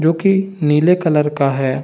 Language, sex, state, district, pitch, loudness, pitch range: Hindi, male, Bihar, Saran, 155 Hz, -15 LUFS, 145-180 Hz